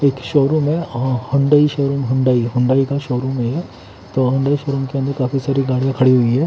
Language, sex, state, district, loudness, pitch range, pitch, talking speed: Hindi, male, Haryana, Charkhi Dadri, -17 LUFS, 130-140 Hz, 135 Hz, 195 wpm